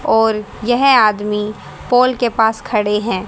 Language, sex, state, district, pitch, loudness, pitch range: Hindi, female, Haryana, Charkhi Dadri, 225 Hz, -15 LUFS, 210-245 Hz